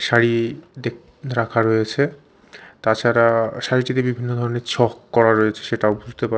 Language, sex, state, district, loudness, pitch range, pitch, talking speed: Bengali, male, Chhattisgarh, Raipur, -20 LUFS, 115-125 Hz, 120 Hz, 130 wpm